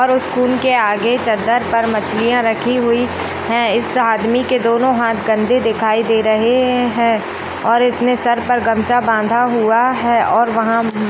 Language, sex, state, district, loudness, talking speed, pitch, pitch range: Hindi, female, Chhattisgarh, Rajnandgaon, -15 LUFS, 160 wpm, 235 Hz, 225-245 Hz